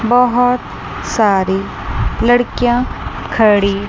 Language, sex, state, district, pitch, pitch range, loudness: Hindi, female, Chandigarh, Chandigarh, 230 Hz, 200-245 Hz, -15 LUFS